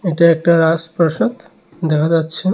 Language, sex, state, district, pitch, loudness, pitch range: Bengali, male, Tripura, West Tripura, 165 Hz, -15 LUFS, 160-170 Hz